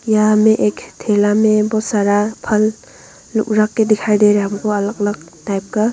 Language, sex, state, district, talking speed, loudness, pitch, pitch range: Hindi, female, Arunachal Pradesh, Longding, 200 wpm, -16 LUFS, 215 Hz, 205-215 Hz